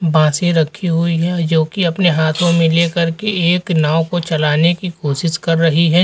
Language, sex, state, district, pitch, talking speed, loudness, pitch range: Hindi, male, Uttar Pradesh, Hamirpur, 165 Hz, 200 wpm, -15 LUFS, 160-175 Hz